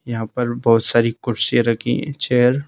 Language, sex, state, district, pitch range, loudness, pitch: Hindi, male, Madhya Pradesh, Bhopal, 115-125 Hz, -19 LUFS, 120 Hz